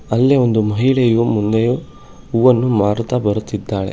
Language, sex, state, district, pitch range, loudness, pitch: Kannada, male, Karnataka, Bangalore, 105-125 Hz, -16 LUFS, 115 Hz